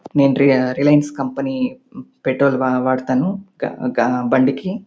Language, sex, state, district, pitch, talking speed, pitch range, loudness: Telugu, male, Andhra Pradesh, Anantapur, 140 Hz, 125 wpm, 130-190 Hz, -18 LUFS